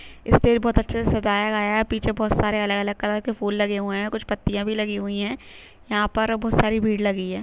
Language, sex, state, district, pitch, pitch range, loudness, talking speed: Hindi, female, Chhattisgarh, Rajnandgaon, 210 Hz, 205-220 Hz, -23 LUFS, 240 wpm